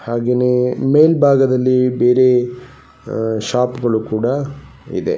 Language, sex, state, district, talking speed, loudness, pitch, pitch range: Kannada, male, Karnataka, Gulbarga, 95 wpm, -15 LUFS, 125 Hz, 120-130 Hz